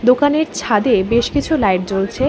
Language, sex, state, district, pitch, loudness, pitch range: Bengali, female, West Bengal, Alipurduar, 250 Hz, -16 LUFS, 195-290 Hz